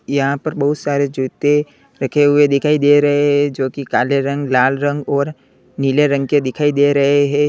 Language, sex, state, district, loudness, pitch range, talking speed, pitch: Hindi, male, Uttar Pradesh, Lalitpur, -16 LUFS, 140-145 Hz, 200 wpm, 140 Hz